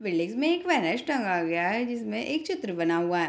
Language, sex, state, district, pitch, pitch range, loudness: Hindi, female, Bihar, Madhepura, 220 Hz, 175-285 Hz, -27 LUFS